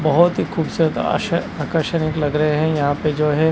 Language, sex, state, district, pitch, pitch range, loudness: Hindi, male, Maharashtra, Mumbai Suburban, 155 Hz, 150-160 Hz, -19 LUFS